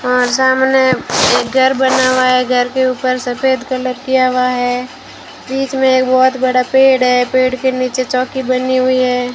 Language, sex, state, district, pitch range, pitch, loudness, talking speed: Hindi, female, Rajasthan, Bikaner, 255-260 Hz, 255 Hz, -13 LUFS, 185 wpm